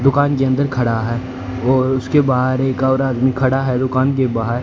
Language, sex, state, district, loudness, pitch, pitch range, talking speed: Hindi, male, Haryana, Rohtak, -17 LUFS, 130 Hz, 125-135 Hz, 205 wpm